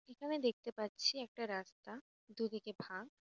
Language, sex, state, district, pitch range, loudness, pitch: Bengali, female, West Bengal, North 24 Parganas, 210-250 Hz, -41 LUFS, 225 Hz